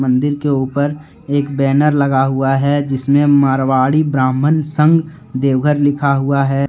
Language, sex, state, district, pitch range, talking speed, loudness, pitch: Hindi, male, Jharkhand, Deoghar, 135-145 Hz, 145 wpm, -14 LUFS, 140 Hz